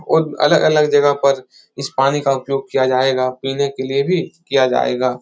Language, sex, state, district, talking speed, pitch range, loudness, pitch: Hindi, male, Uttar Pradesh, Etah, 205 wpm, 130-145 Hz, -17 LUFS, 135 Hz